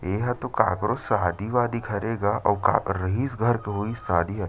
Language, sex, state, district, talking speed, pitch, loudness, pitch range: Chhattisgarhi, male, Chhattisgarh, Sarguja, 200 wpm, 105 Hz, -25 LUFS, 100-120 Hz